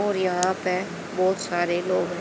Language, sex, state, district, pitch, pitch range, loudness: Hindi, female, Haryana, Jhajjar, 185 Hz, 175-190 Hz, -25 LUFS